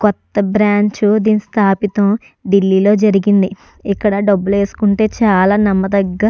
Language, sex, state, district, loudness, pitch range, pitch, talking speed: Telugu, female, Andhra Pradesh, Krishna, -14 LUFS, 200-210 Hz, 205 Hz, 125 wpm